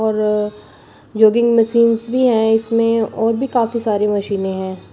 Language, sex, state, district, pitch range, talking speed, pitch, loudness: Hindi, female, Uttar Pradesh, Shamli, 210-230 Hz, 145 wpm, 225 Hz, -16 LUFS